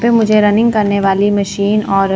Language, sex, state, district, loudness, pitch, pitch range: Hindi, female, Chandigarh, Chandigarh, -13 LUFS, 205 Hz, 200-215 Hz